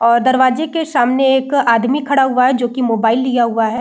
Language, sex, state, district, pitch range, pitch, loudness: Hindi, female, Bihar, Saran, 235-265 Hz, 255 Hz, -14 LUFS